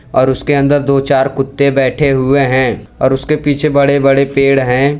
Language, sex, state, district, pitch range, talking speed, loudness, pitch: Hindi, male, Gujarat, Valsad, 135-140 Hz, 190 wpm, -12 LUFS, 135 Hz